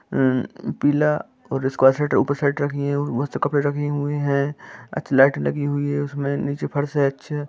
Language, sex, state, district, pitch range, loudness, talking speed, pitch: Hindi, male, Jharkhand, Jamtara, 140-145 Hz, -22 LUFS, 185 wpm, 145 Hz